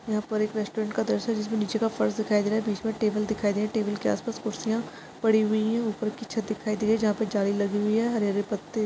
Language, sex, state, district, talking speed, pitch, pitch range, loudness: Hindi, female, Maharashtra, Pune, 285 wpm, 215 Hz, 210-220 Hz, -27 LUFS